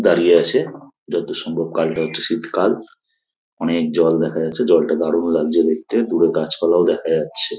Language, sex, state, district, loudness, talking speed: Bengali, male, West Bengal, North 24 Parganas, -18 LUFS, 150 wpm